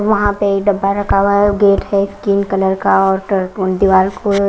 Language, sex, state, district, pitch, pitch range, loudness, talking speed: Hindi, female, Punjab, Kapurthala, 200 Hz, 195-200 Hz, -14 LUFS, 185 wpm